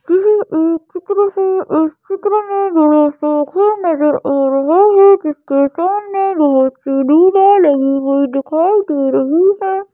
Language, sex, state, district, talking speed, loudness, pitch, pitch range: Hindi, female, Madhya Pradesh, Bhopal, 110 wpm, -13 LUFS, 330 Hz, 290-395 Hz